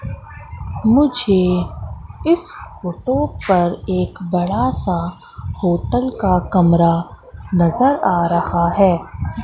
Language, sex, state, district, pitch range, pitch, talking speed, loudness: Hindi, female, Madhya Pradesh, Katni, 170-200 Hz, 180 Hz, 90 wpm, -17 LUFS